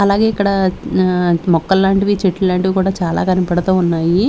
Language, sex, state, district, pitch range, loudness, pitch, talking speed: Telugu, female, Andhra Pradesh, Sri Satya Sai, 175-195 Hz, -15 LUFS, 185 Hz, 155 wpm